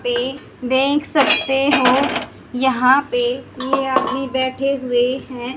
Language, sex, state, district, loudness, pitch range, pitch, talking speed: Hindi, male, Haryana, Charkhi Dadri, -18 LUFS, 255-275 Hz, 265 Hz, 120 wpm